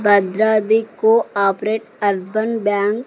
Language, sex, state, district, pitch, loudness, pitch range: Telugu, female, Telangana, Mahabubabad, 215 Hz, -17 LUFS, 205-220 Hz